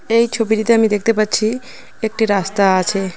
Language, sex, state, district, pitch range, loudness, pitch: Bengali, female, West Bengal, Cooch Behar, 200-225 Hz, -16 LUFS, 220 Hz